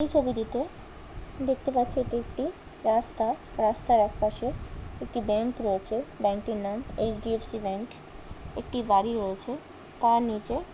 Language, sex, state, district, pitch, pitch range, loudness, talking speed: Bengali, female, West Bengal, Malda, 230 Hz, 215-250 Hz, -29 LUFS, 125 wpm